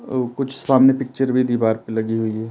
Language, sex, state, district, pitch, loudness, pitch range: Hindi, male, Himachal Pradesh, Shimla, 125 Hz, -19 LUFS, 110-130 Hz